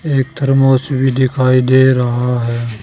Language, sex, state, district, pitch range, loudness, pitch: Hindi, male, Haryana, Charkhi Dadri, 125-135 Hz, -13 LUFS, 130 Hz